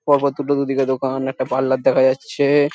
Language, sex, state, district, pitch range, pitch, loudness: Bengali, male, West Bengal, Jhargram, 130-145 Hz, 135 Hz, -18 LUFS